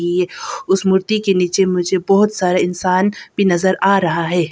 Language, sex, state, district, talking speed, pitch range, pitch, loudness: Hindi, female, Arunachal Pradesh, Papum Pare, 160 wpm, 180-195 Hz, 185 Hz, -16 LUFS